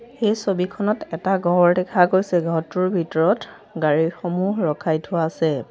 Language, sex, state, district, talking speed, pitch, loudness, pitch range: Assamese, female, Assam, Sonitpur, 125 wpm, 175 Hz, -21 LUFS, 165-195 Hz